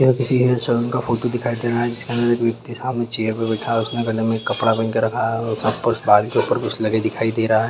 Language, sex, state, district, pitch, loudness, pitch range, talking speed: Hindi, male, Jharkhand, Sahebganj, 115 Hz, -20 LUFS, 110-120 Hz, 255 wpm